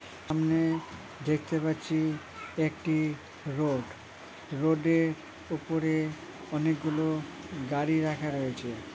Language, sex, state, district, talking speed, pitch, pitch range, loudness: Bengali, female, West Bengal, Malda, 95 wpm, 155 Hz, 150-160 Hz, -31 LUFS